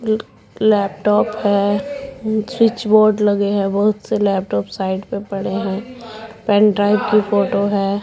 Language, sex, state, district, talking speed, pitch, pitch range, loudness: Hindi, female, Punjab, Pathankot, 135 wpm, 210 Hz, 200-215 Hz, -17 LUFS